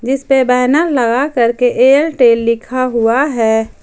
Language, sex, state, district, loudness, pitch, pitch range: Hindi, female, Jharkhand, Ranchi, -12 LUFS, 250 Hz, 235-270 Hz